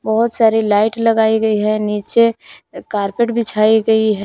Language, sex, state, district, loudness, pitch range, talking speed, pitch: Hindi, female, Jharkhand, Palamu, -15 LUFS, 210-230 Hz, 155 wpm, 220 Hz